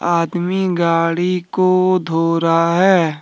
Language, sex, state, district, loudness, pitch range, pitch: Hindi, male, Jharkhand, Deoghar, -16 LUFS, 165-185 Hz, 175 Hz